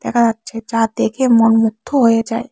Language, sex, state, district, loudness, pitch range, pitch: Bengali, female, Tripura, West Tripura, -15 LUFS, 225-240 Hz, 230 Hz